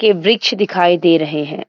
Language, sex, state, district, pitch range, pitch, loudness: Hindi, female, Uttarakhand, Uttarkashi, 165-210 Hz, 180 Hz, -14 LUFS